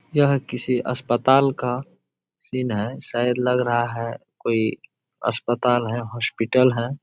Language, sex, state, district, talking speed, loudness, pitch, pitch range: Hindi, male, Bihar, Supaul, 145 wpm, -22 LUFS, 125 Hz, 120-130 Hz